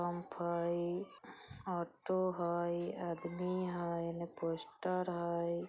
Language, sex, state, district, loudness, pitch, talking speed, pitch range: Bajjika, female, Bihar, Vaishali, -39 LUFS, 175 Hz, 75 wpm, 170-180 Hz